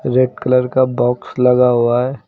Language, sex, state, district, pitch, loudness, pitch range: Hindi, male, Uttar Pradesh, Lucknow, 125 Hz, -15 LUFS, 125-130 Hz